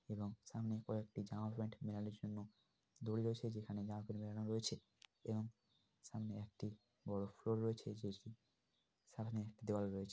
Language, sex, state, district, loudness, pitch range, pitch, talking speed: Bengali, male, West Bengal, Paschim Medinipur, -47 LUFS, 105-110 Hz, 110 Hz, 150 wpm